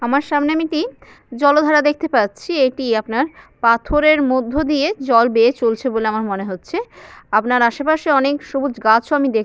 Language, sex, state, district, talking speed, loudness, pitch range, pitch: Bengali, female, West Bengal, Purulia, 165 wpm, -17 LUFS, 230-295 Hz, 270 Hz